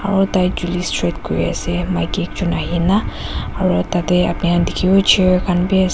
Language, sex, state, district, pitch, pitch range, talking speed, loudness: Nagamese, female, Nagaland, Dimapur, 180 Hz, 175-190 Hz, 170 wpm, -17 LUFS